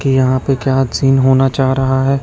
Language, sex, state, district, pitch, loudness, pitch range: Hindi, male, Chhattisgarh, Raipur, 135 Hz, -13 LUFS, 130-135 Hz